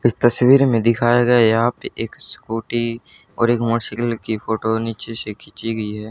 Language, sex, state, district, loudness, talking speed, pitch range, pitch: Hindi, male, Haryana, Charkhi Dadri, -19 LUFS, 185 wpm, 110-120 Hz, 115 Hz